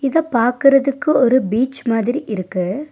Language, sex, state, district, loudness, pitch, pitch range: Tamil, female, Tamil Nadu, Nilgiris, -17 LUFS, 255 Hz, 230-275 Hz